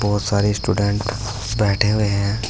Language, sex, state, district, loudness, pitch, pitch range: Hindi, male, Uttar Pradesh, Saharanpur, -20 LUFS, 105 Hz, 100-105 Hz